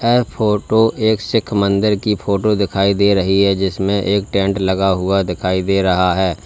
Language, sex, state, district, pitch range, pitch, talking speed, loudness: Hindi, male, Uttar Pradesh, Lalitpur, 95-105 Hz, 100 Hz, 185 wpm, -16 LUFS